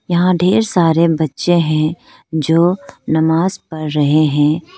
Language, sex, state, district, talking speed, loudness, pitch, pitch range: Hindi, female, Arunachal Pradesh, Lower Dibang Valley, 125 wpm, -15 LUFS, 160 Hz, 155-175 Hz